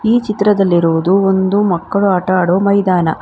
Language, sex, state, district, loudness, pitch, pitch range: Kannada, female, Karnataka, Bangalore, -13 LUFS, 190 Hz, 180-200 Hz